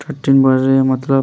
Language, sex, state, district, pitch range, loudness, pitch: Hindi, male, Uttar Pradesh, Hamirpur, 130-135 Hz, -13 LUFS, 135 Hz